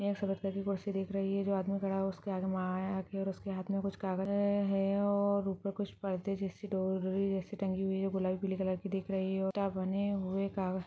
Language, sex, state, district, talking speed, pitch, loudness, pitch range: Hindi, female, Uttar Pradesh, Ghazipur, 265 wpm, 195 Hz, -35 LUFS, 190-195 Hz